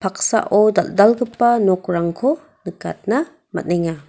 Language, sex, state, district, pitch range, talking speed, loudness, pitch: Garo, female, Meghalaya, West Garo Hills, 175-240 Hz, 75 wpm, -18 LUFS, 205 Hz